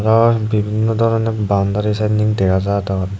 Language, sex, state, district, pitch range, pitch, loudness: Chakma, male, Tripura, Dhalai, 100-110 Hz, 105 Hz, -16 LUFS